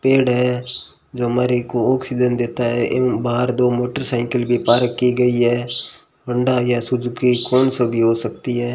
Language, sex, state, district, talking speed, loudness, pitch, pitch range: Hindi, male, Rajasthan, Bikaner, 180 wpm, -18 LUFS, 125 Hz, 120-125 Hz